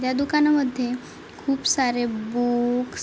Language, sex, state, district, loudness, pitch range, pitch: Marathi, female, Maharashtra, Chandrapur, -23 LUFS, 245-275 Hz, 250 Hz